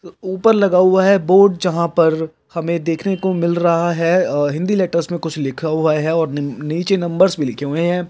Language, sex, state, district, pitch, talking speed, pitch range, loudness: Hindi, male, Chhattisgarh, Rajnandgaon, 170 Hz, 190 wpm, 160-185 Hz, -16 LUFS